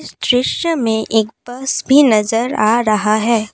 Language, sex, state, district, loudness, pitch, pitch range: Hindi, female, Assam, Kamrup Metropolitan, -15 LUFS, 225 Hz, 215-250 Hz